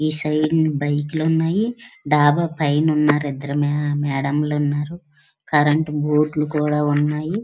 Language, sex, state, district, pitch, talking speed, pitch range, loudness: Telugu, female, Andhra Pradesh, Srikakulam, 150 Hz, 135 wpm, 145-155 Hz, -20 LUFS